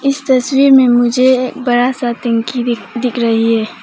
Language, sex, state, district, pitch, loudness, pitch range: Hindi, female, Arunachal Pradesh, Papum Pare, 245 Hz, -13 LUFS, 235-260 Hz